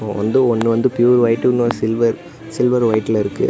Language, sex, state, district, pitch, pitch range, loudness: Tamil, male, Tamil Nadu, Namakkal, 115 Hz, 110-125 Hz, -16 LUFS